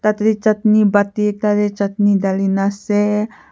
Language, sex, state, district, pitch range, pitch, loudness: Nagamese, female, Nagaland, Kohima, 200-215 Hz, 210 Hz, -16 LUFS